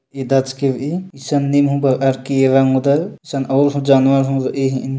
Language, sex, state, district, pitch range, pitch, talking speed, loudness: Sadri, male, Chhattisgarh, Jashpur, 135-140 Hz, 135 Hz, 205 wpm, -16 LUFS